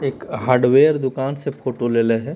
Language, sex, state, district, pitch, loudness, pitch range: Hindi, male, Bihar, Jamui, 130 Hz, -18 LUFS, 120-140 Hz